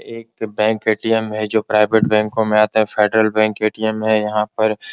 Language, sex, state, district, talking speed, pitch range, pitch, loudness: Hindi, male, Bihar, Supaul, 220 wpm, 105-110 Hz, 110 Hz, -17 LUFS